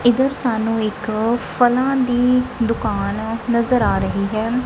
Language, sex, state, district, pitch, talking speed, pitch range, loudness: Punjabi, female, Punjab, Kapurthala, 235 Hz, 130 wpm, 220-250 Hz, -19 LUFS